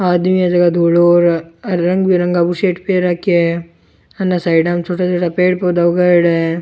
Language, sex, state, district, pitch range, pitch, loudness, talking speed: Rajasthani, male, Rajasthan, Churu, 170-180 Hz, 175 Hz, -14 LUFS, 180 wpm